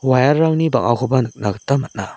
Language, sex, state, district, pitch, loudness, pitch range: Garo, male, Meghalaya, South Garo Hills, 130 Hz, -17 LUFS, 120-140 Hz